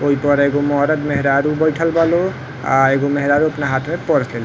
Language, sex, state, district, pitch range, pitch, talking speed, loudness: Bhojpuri, male, Uttar Pradesh, Varanasi, 140-155 Hz, 145 Hz, 230 wpm, -16 LUFS